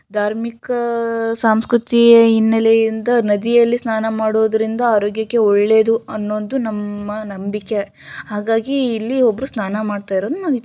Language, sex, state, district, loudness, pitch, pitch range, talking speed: Kannada, female, Karnataka, Shimoga, -17 LUFS, 225 Hz, 210-235 Hz, 95 wpm